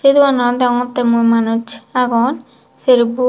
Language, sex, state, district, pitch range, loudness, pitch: Chakma, female, Tripura, Dhalai, 235-255 Hz, -15 LUFS, 245 Hz